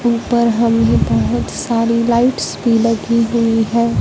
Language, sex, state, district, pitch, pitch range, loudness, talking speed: Hindi, female, Punjab, Fazilka, 235 Hz, 230-235 Hz, -15 LUFS, 135 wpm